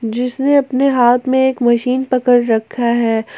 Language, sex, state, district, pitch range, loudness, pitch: Hindi, female, Jharkhand, Ranchi, 235-260 Hz, -14 LUFS, 250 Hz